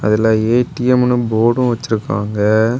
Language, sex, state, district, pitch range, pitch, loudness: Tamil, male, Tamil Nadu, Kanyakumari, 110-125 Hz, 115 Hz, -15 LUFS